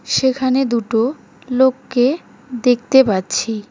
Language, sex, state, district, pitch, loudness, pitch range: Bengali, female, West Bengal, Cooch Behar, 250 Hz, -17 LUFS, 230-260 Hz